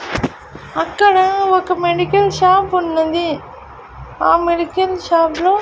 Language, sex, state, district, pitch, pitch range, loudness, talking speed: Telugu, female, Andhra Pradesh, Annamaya, 365 Hz, 340-380 Hz, -15 LUFS, 95 wpm